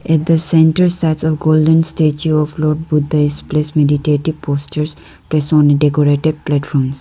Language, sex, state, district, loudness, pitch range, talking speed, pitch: English, female, Arunachal Pradesh, Lower Dibang Valley, -14 LUFS, 145-160 Hz, 160 wpm, 155 Hz